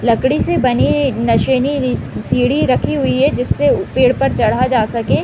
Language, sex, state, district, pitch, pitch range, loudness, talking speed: Hindi, female, Uttar Pradesh, Deoria, 255 Hz, 230-265 Hz, -15 LUFS, 160 wpm